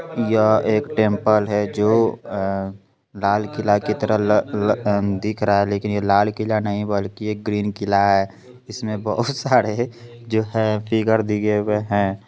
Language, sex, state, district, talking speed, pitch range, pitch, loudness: Hindi, male, Bihar, Begusarai, 165 wpm, 100-110 Hz, 105 Hz, -20 LUFS